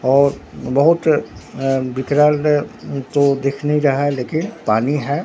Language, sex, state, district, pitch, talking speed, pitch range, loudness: Hindi, male, Bihar, Katihar, 140 Hz, 135 wpm, 135-150 Hz, -17 LUFS